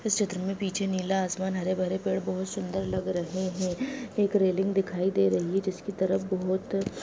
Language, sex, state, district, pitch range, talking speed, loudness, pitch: Hindi, female, Chhattisgarh, Bastar, 185-195 Hz, 195 wpm, -29 LUFS, 190 Hz